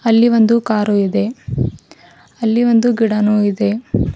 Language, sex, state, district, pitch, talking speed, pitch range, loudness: Kannada, female, Karnataka, Bidar, 225 Hz, 115 wpm, 210-235 Hz, -15 LUFS